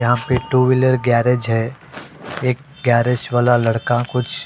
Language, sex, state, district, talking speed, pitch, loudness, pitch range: Hindi, male, Delhi, New Delhi, 160 wpm, 125 Hz, -17 LUFS, 120-130 Hz